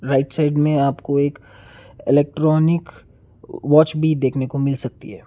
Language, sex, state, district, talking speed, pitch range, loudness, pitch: Hindi, male, Karnataka, Bangalore, 160 wpm, 130-150 Hz, -18 LUFS, 140 Hz